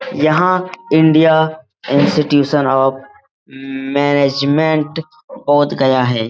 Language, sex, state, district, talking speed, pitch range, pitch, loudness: Hindi, male, Bihar, Lakhisarai, 65 wpm, 135-160 Hz, 150 Hz, -14 LUFS